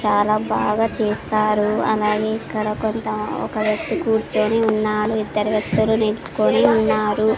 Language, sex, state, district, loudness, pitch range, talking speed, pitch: Telugu, female, Andhra Pradesh, Sri Satya Sai, -20 LUFS, 210-220 Hz, 115 wpm, 215 Hz